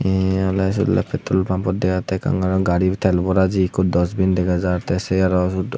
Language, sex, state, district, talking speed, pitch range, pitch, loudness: Chakma, male, Tripura, Unakoti, 205 wpm, 90-95 Hz, 95 Hz, -19 LUFS